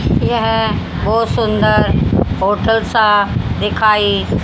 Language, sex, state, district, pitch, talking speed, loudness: Hindi, female, Haryana, Rohtak, 210 Hz, 80 wpm, -14 LUFS